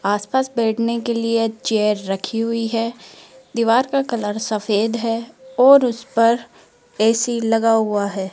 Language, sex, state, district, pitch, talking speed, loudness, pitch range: Hindi, female, Rajasthan, Jaipur, 230 Hz, 135 wpm, -19 LUFS, 220-235 Hz